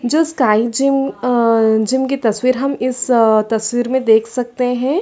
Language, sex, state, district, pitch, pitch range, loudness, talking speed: Hindi, female, Chhattisgarh, Sarguja, 250 Hz, 225-265 Hz, -15 LUFS, 180 wpm